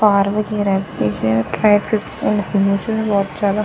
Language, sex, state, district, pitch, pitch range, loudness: Garhwali, female, Uttarakhand, Tehri Garhwal, 200 Hz, 195-210 Hz, -18 LUFS